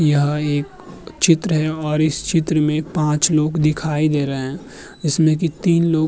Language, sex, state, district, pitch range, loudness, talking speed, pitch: Hindi, male, Uttar Pradesh, Muzaffarnagar, 150-160 Hz, -18 LUFS, 185 wpm, 155 Hz